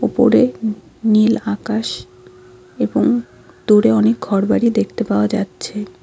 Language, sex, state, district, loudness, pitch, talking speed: Bengali, female, West Bengal, Alipurduar, -17 LUFS, 210 Hz, 100 wpm